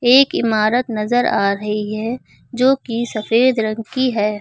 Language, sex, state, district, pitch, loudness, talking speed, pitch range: Hindi, female, Uttar Pradesh, Lucknow, 230 Hz, -17 LUFS, 150 wpm, 215-245 Hz